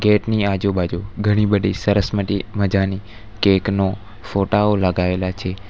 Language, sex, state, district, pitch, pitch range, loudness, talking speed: Gujarati, male, Gujarat, Valsad, 100 Hz, 95-105 Hz, -19 LUFS, 145 wpm